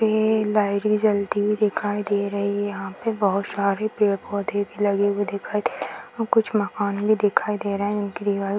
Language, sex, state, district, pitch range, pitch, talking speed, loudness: Hindi, female, Bihar, Jahanabad, 200-215 Hz, 205 Hz, 215 wpm, -23 LUFS